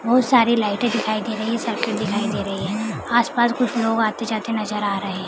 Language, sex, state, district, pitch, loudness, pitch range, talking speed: Hindi, female, Bihar, Madhepura, 220 Hz, -21 LUFS, 210-235 Hz, 260 wpm